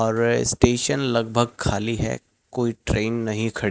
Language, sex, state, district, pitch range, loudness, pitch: Hindi, male, Rajasthan, Bikaner, 110-120 Hz, -22 LUFS, 115 Hz